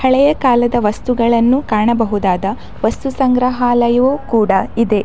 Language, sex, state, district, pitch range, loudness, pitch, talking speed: Kannada, female, Karnataka, Dakshina Kannada, 215-255 Hz, -14 LUFS, 240 Hz, 105 wpm